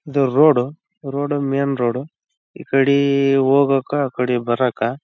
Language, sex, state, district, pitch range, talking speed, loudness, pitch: Kannada, male, Karnataka, Raichur, 130-145 Hz, 130 wpm, -18 LUFS, 135 Hz